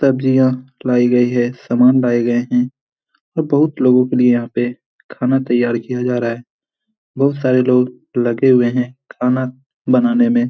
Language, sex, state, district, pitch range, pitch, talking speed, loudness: Hindi, male, Bihar, Jamui, 125-135 Hz, 125 Hz, 185 wpm, -16 LUFS